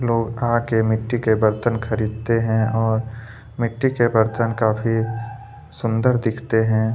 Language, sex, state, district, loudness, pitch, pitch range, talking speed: Hindi, male, Chhattisgarh, Kabirdham, -20 LUFS, 115 Hz, 110-115 Hz, 130 wpm